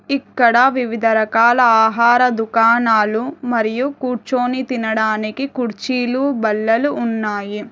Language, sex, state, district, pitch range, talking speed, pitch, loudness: Telugu, female, Telangana, Hyderabad, 220-250 Hz, 85 wpm, 235 Hz, -16 LUFS